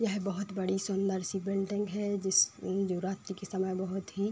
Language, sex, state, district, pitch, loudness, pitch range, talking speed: Hindi, female, Uttar Pradesh, Budaun, 195 Hz, -32 LUFS, 190-200 Hz, 180 wpm